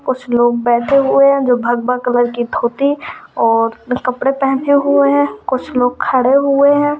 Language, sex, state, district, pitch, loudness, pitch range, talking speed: Hindi, female, Uttar Pradesh, Ghazipur, 255 Hz, -14 LUFS, 240-275 Hz, 170 wpm